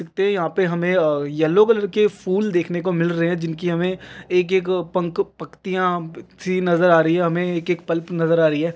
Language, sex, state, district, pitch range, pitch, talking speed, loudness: Hindi, male, Chhattisgarh, Kabirdham, 165-185 Hz, 175 Hz, 225 wpm, -20 LUFS